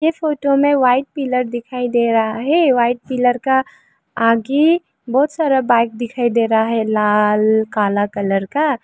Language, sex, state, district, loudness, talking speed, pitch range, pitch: Hindi, female, Arunachal Pradesh, Lower Dibang Valley, -16 LUFS, 165 wpm, 225-275 Hz, 245 Hz